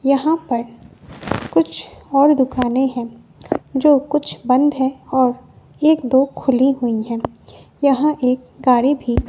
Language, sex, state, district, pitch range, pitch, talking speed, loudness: Hindi, female, Bihar, West Champaran, 245-280 Hz, 265 Hz, 135 wpm, -17 LUFS